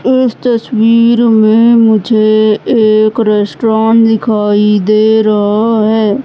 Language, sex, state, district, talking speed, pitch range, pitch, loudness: Hindi, female, Madhya Pradesh, Katni, 95 wpm, 215-230 Hz, 220 Hz, -9 LUFS